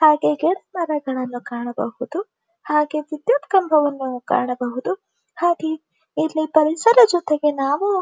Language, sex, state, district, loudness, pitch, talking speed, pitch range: Kannada, female, Karnataka, Dharwad, -20 LUFS, 310 Hz, 90 wpm, 280-350 Hz